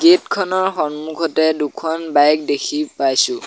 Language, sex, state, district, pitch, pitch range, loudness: Assamese, male, Assam, Sonitpur, 160 Hz, 150-195 Hz, -17 LUFS